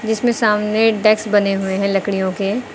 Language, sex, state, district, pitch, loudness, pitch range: Hindi, female, Uttar Pradesh, Lucknow, 210 Hz, -17 LUFS, 195-220 Hz